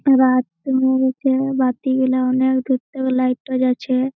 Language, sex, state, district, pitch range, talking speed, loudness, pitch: Bengali, female, West Bengal, Malda, 255-265 Hz, 130 wpm, -18 LUFS, 260 Hz